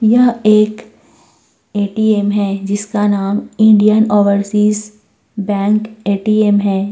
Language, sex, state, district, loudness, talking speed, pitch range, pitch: Hindi, female, Uttar Pradesh, Jyotiba Phule Nagar, -14 LUFS, 95 wpm, 205-215 Hz, 210 Hz